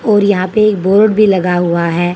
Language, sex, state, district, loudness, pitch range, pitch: Hindi, female, Haryana, Charkhi Dadri, -11 LUFS, 175-210 Hz, 195 Hz